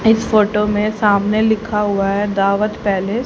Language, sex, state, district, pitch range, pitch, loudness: Hindi, female, Haryana, Charkhi Dadri, 200-215 Hz, 210 Hz, -16 LUFS